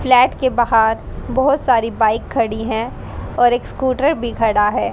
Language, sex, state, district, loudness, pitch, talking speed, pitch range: Hindi, female, Haryana, Rohtak, -17 LUFS, 240 Hz, 170 wpm, 225-260 Hz